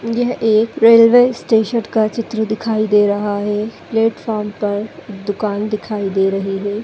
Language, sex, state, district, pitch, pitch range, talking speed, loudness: Kumaoni, female, Uttarakhand, Tehri Garhwal, 215 Hz, 205-225 Hz, 150 wpm, -16 LUFS